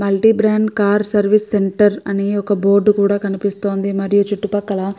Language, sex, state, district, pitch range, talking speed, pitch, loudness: Telugu, female, Andhra Pradesh, Guntur, 200-210 Hz, 155 wpm, 205 Hz, -16 LUFS